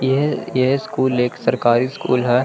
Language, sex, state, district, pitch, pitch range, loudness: Hindi, male, Chandigarh, Chandigarh, 130 Hz, 125-135 Hz, -18 LUFS